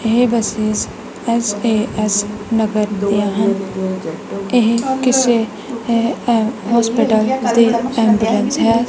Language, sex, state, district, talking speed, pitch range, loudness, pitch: Punjabi, female, Punjab, Kapurthala, 95 wpm, 210-235 Hz, -16 LUFS, 225 Hz